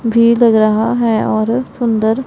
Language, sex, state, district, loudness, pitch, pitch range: Hindi, female, Punjab, Pathankot, -13 LUFS, 230 Hz, 220-235 Hz